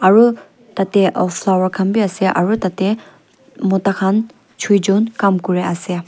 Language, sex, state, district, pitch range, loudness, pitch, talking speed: Nagamese, female, Nagaland, Kohima, 185-220 Hz, -16 LUFS, 195 Hz, 140 wpm